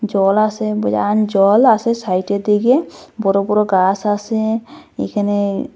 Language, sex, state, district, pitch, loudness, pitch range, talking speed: Bengali, female, Assam, Hailakandi, 210 Hz, -16 LUFS, 200-220 Hz, 125 wpm